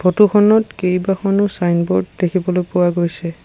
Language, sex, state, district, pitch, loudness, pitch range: Assamese, male, Assam, Sonitpur, 180 Hz, -16 LUFS, 175-195 Hz